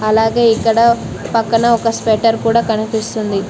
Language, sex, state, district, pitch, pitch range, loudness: Telugu, female, Telangana, Mahabubabad, 225 Hz, 220-230 Hz, -14 LUFS